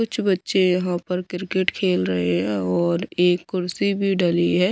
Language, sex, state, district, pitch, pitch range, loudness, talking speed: Hindi, female, Bihar, Kaimur, 180 Hz, 170-190 Hz, -21 LUFS, 180 wpm